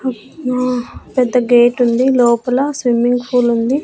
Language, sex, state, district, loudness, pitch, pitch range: Telugu, female, Andhra Pradesh, Annamaya, -15 LUFS, 250 Hz, 240-255 Hz